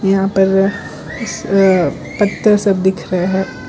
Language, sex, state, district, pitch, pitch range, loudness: Hindi, female, Gujarat, Valsad, 195 Hz, 180-195 Hz, -15 LUFS